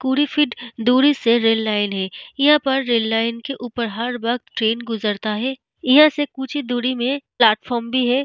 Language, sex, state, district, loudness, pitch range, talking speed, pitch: Hindi, female, Bihar, Vaishali, -19 LUFS, 225-270 Hz, 190 wpm, 245 Hz